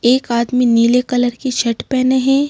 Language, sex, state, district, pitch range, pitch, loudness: Hindi, female, Madhya Pradesh, Bhopal, 240-260 Hz, 250 Hz, -15 LUFS